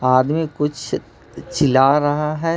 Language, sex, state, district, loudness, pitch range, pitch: Hindi, male, Jharkhand, Ranchi, -18 LUFS, 135-155 Hz, 145 Hz